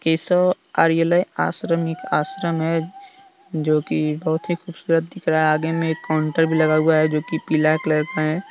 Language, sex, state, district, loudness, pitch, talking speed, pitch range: Hindi, male, Jharkhand, Deoghar, -20 LUFS, 160 Hz, 185 wpm, 155-170 Hz